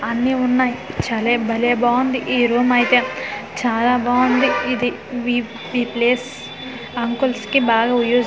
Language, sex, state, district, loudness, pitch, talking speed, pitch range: Telugu, female, Andhra Pradesh, Manyam, -18 LUFS, 245 Hz, 130 wpm, 240-250 Hz